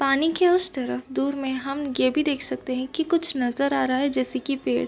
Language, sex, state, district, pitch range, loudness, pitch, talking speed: Hindi, female, Bihar, Purnia, 255-290 Hz, -24 LUFS, 275 Hz, 260 wpm